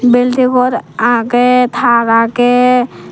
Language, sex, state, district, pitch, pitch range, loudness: Chakma, female, Tripura, Dhalai, 245 Hz, 240-250 Hz, -11 LUFS